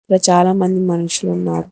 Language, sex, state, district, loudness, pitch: Telugu, female, Telangana, Hyderabad, -15 LUFS, 180 Hz